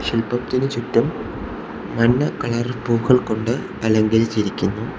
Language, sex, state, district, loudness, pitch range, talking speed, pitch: Malayalam, male, Kerala, Kollam, -20 LUFS, 110-120 Hz, 85 wpm, 120 Hz